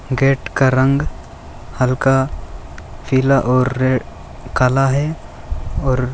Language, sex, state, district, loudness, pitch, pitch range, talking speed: Hindi, male, Bihar, Bhagalpur, -17 LUFS, 130 Hz, 95-135 Hz, 105 wpm